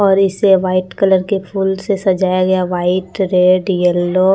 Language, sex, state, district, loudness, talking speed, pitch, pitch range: Hindi, female, Bihar, Kaimur, -14 LUFS, 180 wpm, 190 Hz, 185-195 Hz